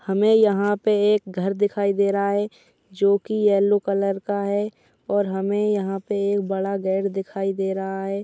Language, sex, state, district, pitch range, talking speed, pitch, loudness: Hindi, female, Uttar Pradesh, Etah, 195-205 Hz, 180 wpm, 200 Hz, -22 LUFS